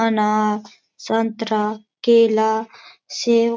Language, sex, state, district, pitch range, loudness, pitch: Hindi, female, Bihar, Jamui, 215-230 Hz, -19 LUFS, 220 Hz